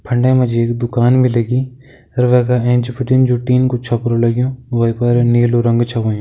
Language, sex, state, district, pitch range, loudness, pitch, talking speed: Hindi, male, Uttarakhand, Tehri Garhwal, 120-125 Hz, -14 LUFS, 120 Hz, 210 wpm